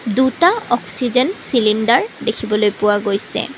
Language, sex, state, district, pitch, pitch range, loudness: Assamese, female, Assam, Kamrup Metropolitan, 230 Hz, 210-255 Hz, -16 LUFS